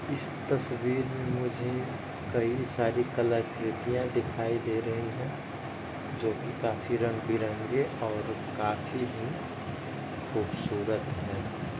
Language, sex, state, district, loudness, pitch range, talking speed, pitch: Hindi, male, Uttar Pradesh, Etah, -32 LUFS, 115-125 Hz, 105 wpm, 120 Hz